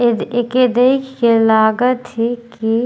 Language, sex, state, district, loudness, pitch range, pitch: Sadri, female, Chhattisgarh, Jashpur, -15 LUFS, 225-250 Hz, 235 Hz